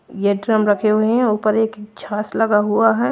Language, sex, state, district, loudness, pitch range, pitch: Hindi, female, Haryana, Rohtak, -17 LUFS, 210-225 Hz, 215 Hz